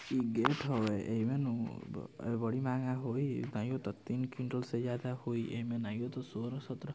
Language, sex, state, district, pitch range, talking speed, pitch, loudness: Bhojpuri, male, Bihar, Gopalganj, 115-130 Hz, 180 wpm, 120 Hz, -37 LUFS